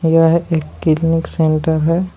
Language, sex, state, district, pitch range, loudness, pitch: Hindi, male, Jharkhand, Palamu, 160-165 Hz, -15 LUFS, 165 Hz